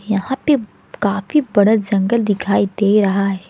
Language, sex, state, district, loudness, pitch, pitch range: Hindi, female, Jharkhand, Garhwa, -16 LUFS, 205 Hz, 195-225 Hz